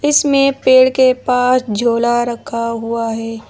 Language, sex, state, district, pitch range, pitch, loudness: Hindi, female, Uttar Pradesh, Lucknow, 230-260 Hz, 240 Hz, -14 LUFS